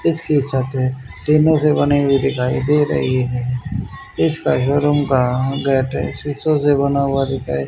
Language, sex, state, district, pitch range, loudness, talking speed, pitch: Hindi, male, Haryana, Charkhi Dadri, 130-145 Hz, -17 LUFS, 155 wpm, 135 Hz